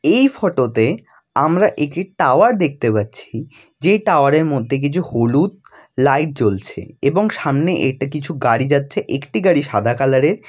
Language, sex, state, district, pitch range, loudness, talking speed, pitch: Bengali, male, West Bengal, Jalpaiguri, 130-175 Hz, -17 LUFS, 155 wpm, 145 Hz